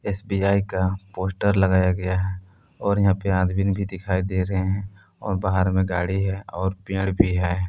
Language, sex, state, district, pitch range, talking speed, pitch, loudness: Hindi, male, Jharkhand, Palamu, 95-100 Hz, 185 wpm, 95 Hz, -23 LUFS